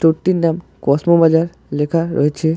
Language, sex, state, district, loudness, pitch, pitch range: Bengali, male, West Bengal, Alipurduar, -16 LUFS, 165 Hz, 155-170 Hz